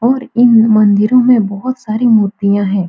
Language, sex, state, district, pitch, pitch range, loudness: Hindi, female, Bihar, Supaul, 220 Hz, 205-245 Hz, -11 LUFS